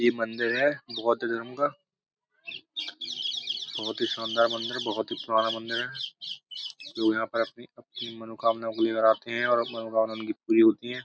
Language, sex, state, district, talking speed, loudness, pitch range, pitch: Hindi, male, Uttar Pradesh, Budaun, 180 wpm, -28 LUFS, 115-140 Hz, 115 Hz